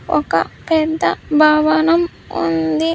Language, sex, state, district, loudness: Telugu, female, Andhra Pradesh, Sri Satya Sai, -16 LUFS